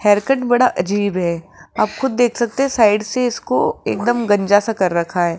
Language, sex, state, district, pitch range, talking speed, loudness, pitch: Hindi, female, Rajasthan, Jaipur, 190-245 Hz, 200 wpm, -17 LUFS, 210 Hz